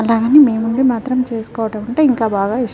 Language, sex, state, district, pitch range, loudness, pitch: Telugu, female, Telangana, Nalgonda, 225-255 Hz, -15 LUFS, 230 Hz